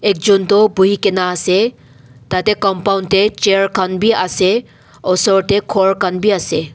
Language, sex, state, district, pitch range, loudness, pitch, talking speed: Nagamese, male, Nagaland, Dimapur, 185-205 Hz, -14 LUFS, 195 Hz, 160 wpm